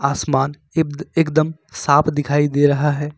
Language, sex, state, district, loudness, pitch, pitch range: Hindi, male, Jharkhand, Ranchi, -18 LUFS, 145 Hz, 140-155 Hz